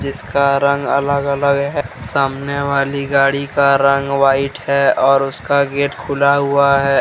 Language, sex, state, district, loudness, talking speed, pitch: Hindi, male, Jharkhand, Deoghar, -15 LUFS, 155 wpm, 140 Hz